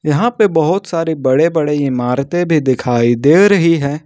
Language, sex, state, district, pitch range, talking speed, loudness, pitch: Hindi, male, Jharkhand, Ranchi, 135-170 Hz, 175 wpm, -13 LUFS, 155 Hz